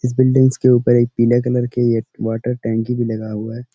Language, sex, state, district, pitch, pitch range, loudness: Hindi, male, Uttar Pradesh, Etah, 120 Hz, 115-125 Hz, -17 LUFS